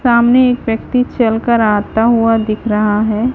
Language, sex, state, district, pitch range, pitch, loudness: Hindi, female, Chhattisgarh, Raipur, 215-240 Hz, 225 Hz, -13 LUFS